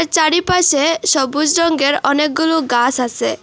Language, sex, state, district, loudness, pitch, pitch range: Bengali, female, Assam, Hailakandi, -14 LUFS, 300 Hz, 270-330 Hz